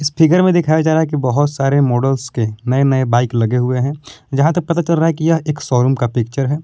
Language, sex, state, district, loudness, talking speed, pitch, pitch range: Hindi, male, Jharkhand, Palamu, -15 LUFS, 260 wpm, 140 Hz, 125-160 Hz